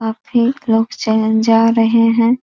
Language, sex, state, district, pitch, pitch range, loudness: Hindi, female, Bihar, East Champaran, 225 Hz, 225-235 Hz, -14 LUFS